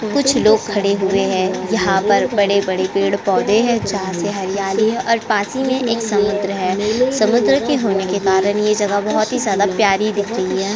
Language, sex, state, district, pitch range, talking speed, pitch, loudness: Hindi, female, Uttar Pradesh, Jyotiba Phule Nagar, 195-220 Hz, 195 wpm, 205 Hz, -17 LUFS